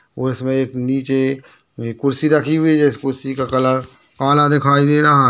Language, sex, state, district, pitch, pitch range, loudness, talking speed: Hindi, male, Uttar Pradesh, Jyotiba Phule Nagar, 135 Hz, 130-145 Hz, -16 LUFS, 205 wpm